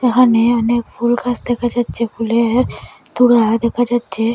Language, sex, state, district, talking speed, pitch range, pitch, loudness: Bengali, female, Assam, Hailakandi, 140 wpm, 230-245 Hz, 240 Hz, -15 LUFS